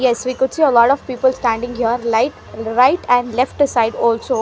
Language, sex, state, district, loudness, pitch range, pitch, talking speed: English, female, Haryana, Rohtak, -16 LUFS, 230-260 Hz, 245 Hz, 215 wpm